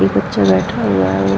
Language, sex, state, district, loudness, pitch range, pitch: Hindi, female, Bihar, Vaishali, -15 LUFS, 95-100 Hz, 95 Hz